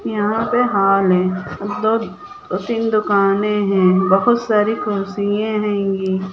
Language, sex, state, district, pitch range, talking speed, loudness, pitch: Hindi, female, Chhattisgarh, Bilaspur, 195-220 Hz, 115 wpm, -17 LUFS, 205 Hz